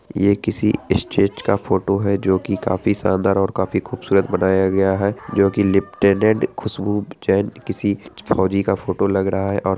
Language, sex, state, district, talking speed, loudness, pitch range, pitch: Hindi, male, Bihar, Araria, 185 wpm, -19 LUFS, 95-100 Hz, 100 Hz